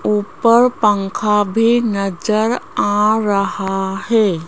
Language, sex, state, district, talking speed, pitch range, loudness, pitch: Hindi, female, Rajasthan, Jaipur, 95 wpm, 200-225 Hz, -16 LUFS, 210 Hz